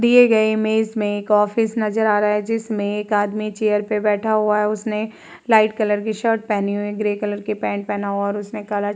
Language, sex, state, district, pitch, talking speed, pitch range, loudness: Hindi, female, Uttar Pradesh, Varanasi, 210 Hz, 240 wpm, 205-220 Hz, -20 LUFS